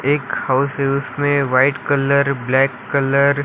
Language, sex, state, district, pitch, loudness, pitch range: Hindi, male, Maharashtra, Washim, 140 Hz, -17 LUFS, 135-140 Hz